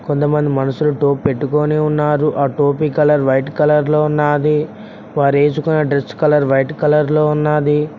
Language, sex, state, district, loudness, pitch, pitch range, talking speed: Telugu, male, Telangana, Mahabubabad, -15 LUFS, 150 Hz, 145-150 Hz, 150 wpm